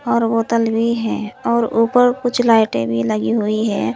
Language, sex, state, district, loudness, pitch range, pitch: Hindi, female, Uttar Pradesh, Saharanpur, -17 LUFS, 210-235 Hz, 230 Hz